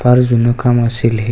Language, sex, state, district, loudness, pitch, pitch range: Marathi, male, Maharashtra, Aurangabad, -13 LUFS, 120 Hz, 115-125 Hz